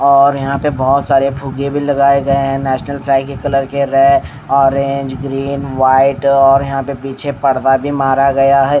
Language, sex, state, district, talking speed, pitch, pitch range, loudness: Hindi, male, Haryana, Rohtak, 210 wpm, 140 Hz, 135-140 Hz, -13 LUFS